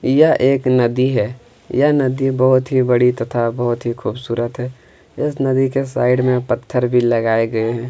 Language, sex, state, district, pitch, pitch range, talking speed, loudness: Hindi, male, Chhattisgarh, Kabirdham, 125 Hz, 120-130 Hz, 180 wpm, -17 LUFS